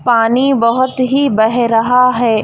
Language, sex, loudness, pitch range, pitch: Hindi, female, -12 LUFS, 230-255 Hz, 245 Hz